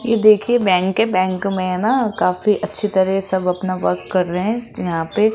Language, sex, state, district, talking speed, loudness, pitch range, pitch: Hindi, female, Rajasthan, Jaipur, 215 wpm, -18 LUFS, 185-215 Hz, 190 Hz